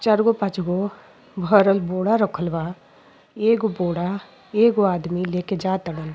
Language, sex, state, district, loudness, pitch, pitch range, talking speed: Bhojpuri, female, Uttar Pradesh, Ghazipur, -21 LUFS, 190 Hz, 180-210 Hz, 145 wpm